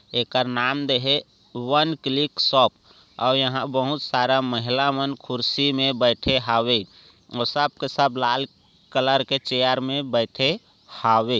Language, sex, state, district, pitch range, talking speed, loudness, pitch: Chhattisgarhi, male, Chhattisgarh, Raigarh, 120-140 Hz, 140 wpm, -22 LUFS, 130 Hz